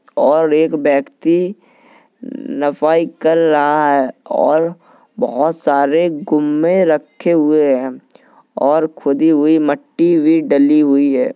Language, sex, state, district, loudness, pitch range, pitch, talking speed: Hindi, male, Uttar Pradesh, Jalaun, -14 LUFS, 150-205 Hz, 160 Hz, 115 wpm